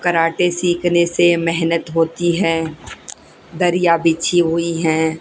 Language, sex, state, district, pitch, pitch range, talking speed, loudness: Hindi, female, Haryana, Jhajjar, 170 Hz, 165-175 Hz, 115 wpm, -17 LUFS